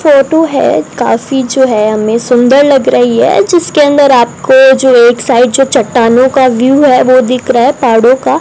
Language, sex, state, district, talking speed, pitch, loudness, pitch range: Hindi, female, Rajasthan, Bikaner, 195 wpm, 255 Hz, -7 LUFS, 245-275 Hz